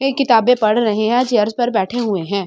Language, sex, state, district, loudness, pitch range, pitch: Hindi, female, Delhi, New Delhi, -16 LUFS, 215-245 Hz, 230 Hz